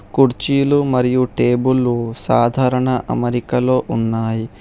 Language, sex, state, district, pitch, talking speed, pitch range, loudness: Telugu, male, Telangana, Hyderabad, 125 Hz, 80 wpm, 120-130 Hz, -17 LUFS